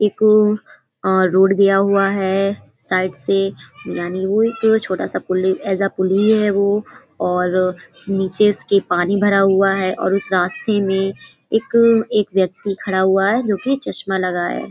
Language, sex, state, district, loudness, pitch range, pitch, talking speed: Hindi, female, Uttar Pradesh, Hamirpur, -17 LUFS, 190-210 Hz, 195 Hz, 165 wpm